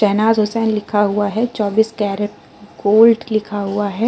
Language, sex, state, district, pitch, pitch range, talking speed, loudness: Hindi, female, Uttar Pradesh, Jalaun, 210 Hz, 205-225 Hz, 160 wpm, -16 LUFS